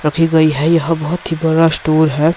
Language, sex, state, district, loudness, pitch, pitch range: Hindi, male, Himachal Pradesh, Shimla, -14 LUFS, 160 Hz, 155-165 Hz